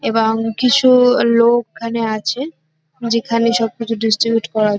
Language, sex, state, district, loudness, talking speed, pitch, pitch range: Bengali, female, West Bengal, North 24 Parganas, -15 LUFS, 140 wpm, 230 Hz, 220-235 Hz